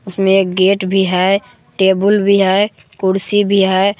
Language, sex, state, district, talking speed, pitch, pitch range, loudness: Hindi, male, Jharkhand, Palamu, 165 wpm, 195 Hz, 190-200 Hz, -14 LUFS